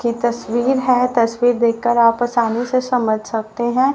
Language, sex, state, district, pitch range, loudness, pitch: Hindi, female, Haryana, Rohtak, 230-250 Hz, -17 LUFS, 240 Hz